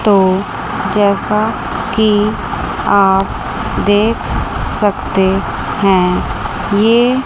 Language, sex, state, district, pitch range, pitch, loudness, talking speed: Hindi, female, Chandigarh, Chandigarh, 195-215 Hz, 205 Hz, -14 LUFS, 65 wpm